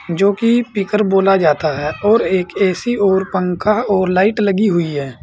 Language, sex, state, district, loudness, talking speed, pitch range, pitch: Hindi, male, Uttar Pradesh, Saharanpur, -15 LUFS, 185 wpm, 180-210 Hz, 195 Hz